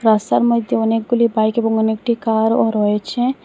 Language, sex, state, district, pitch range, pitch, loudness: Bengali, female, Assam, Hailakandi, 220-235 Hz, 225 Hz, -17 LUFS